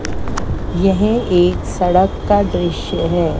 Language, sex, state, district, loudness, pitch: Hindi, female, Gujarat, Gandhinagar, -16 LUFS, 180 Hz